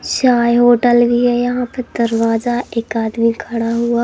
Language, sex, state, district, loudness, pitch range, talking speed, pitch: Hindi, female, Madhya Pradesh, Katni, -15 LUFS, 230-245 Hz, 165 wpm, 240 Hz